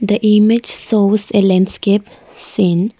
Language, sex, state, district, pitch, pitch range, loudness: English, female, Arunachal Pradesh, Lower Dibang Valley, 210 Hz, 200-215 Hz, -13 LUFS